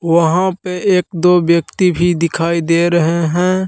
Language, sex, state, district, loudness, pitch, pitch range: Hindi, male, Jharkhand, Palamu, -14 LUFS, 170 Hz, 170-180 Hz